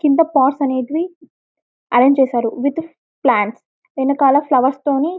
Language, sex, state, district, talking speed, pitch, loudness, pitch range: Telugu, female, Telangana, Karimnagar, 115 wpm, 275 Hz, -16 LUFS, 260-305 Hz